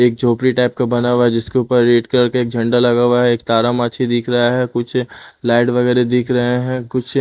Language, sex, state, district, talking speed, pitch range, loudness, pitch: Hindi, male, Punjab, Pathankot, 250 wpm, 120-125 Hz, -15 LUFS, 120 Hz